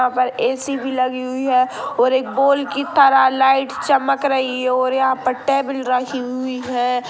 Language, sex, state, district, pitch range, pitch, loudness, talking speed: Hindi, female, Bihar, Saran, 255-275 Hz, 260 Hz, -18 LUFS, 200 wpm